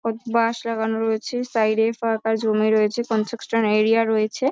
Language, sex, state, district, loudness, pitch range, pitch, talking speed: Bengali, female, West Bengal, North 24 Parganas, -21 LUFS, 220-230 Hz, 225 Hz, 170 wpm